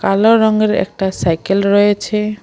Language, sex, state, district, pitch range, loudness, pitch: Bengali, female, West Bengal, Alipurduar, 195-215 Hz, -14 LUFS, 205 Hz